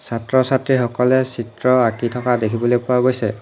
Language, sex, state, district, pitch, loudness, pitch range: Assamese, male, Assam, Hailakandi, 125 Hz, -18 LUFS, 120-130 Hz